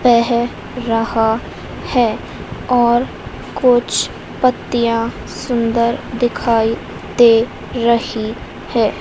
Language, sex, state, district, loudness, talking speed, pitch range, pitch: Hindi, female, Madhya Pradesh, Dhar, -16 LUFS, 75 wpm, 230-245 Hz, 235 Hz